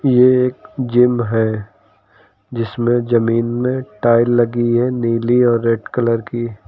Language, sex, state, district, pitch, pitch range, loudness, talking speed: Hindi, male, Uttar Pradesh, Lucknow, 120 Hz, 115-125 Hz, -16 LUFS, 125 wpm